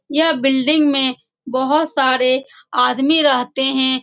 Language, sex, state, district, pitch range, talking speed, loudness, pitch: Hindi, female, Bihar, Saran, 260-295 Hz, 120 wpm, -15 LUFS, 265 Hz